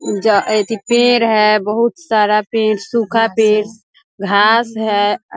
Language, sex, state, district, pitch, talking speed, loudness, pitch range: Hindi, female, Bihar, East Champaran, 215 Hz, 125 wpm, -14 LUFS, 210-225 Hz